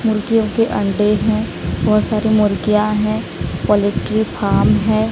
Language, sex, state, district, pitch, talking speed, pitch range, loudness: Hindi, female, Odisha, Sambalpur, 215 Hz, 130 wpm, 210-220 Hz, -16 LUFS